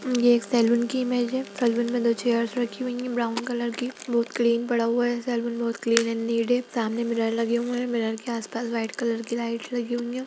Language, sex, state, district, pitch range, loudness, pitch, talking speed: Hindi, female, Bihar, Jahanabad, 230-245 Hz, -25 LUFS, 235 Hz, 245 wpm